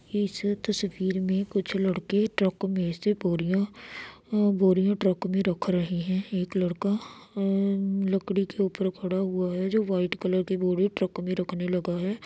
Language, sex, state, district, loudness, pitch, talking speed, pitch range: Hindi, female, Bihar, Darbhanga, -27 LUFS, 190 Hz, 170 wpm, 185-200 Hz